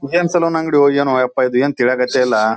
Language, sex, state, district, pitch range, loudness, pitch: Kannada, male, Karnataka, Bijapur, 125-145 Hz, -15 LUFS, 130 Hz